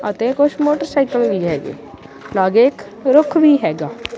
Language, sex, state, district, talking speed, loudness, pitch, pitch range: Punjabi, male, Punjab, Kapurthala, 145 wpm, -16 LUFS, 275 Hz, 205-295 Hz